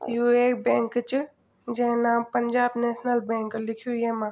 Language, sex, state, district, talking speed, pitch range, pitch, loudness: Garhwali, female, Uttarakhand, Tehri Garhwal, 155 wpm, 235-245 Hz, 235 Hz, -25 LUFS